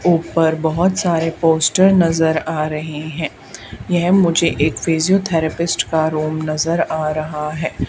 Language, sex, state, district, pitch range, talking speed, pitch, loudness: Hindi, male, Haryana, Charkhi Dadri, 155-170 Hz, 135 wpm, 160 Hz, -17 LUFS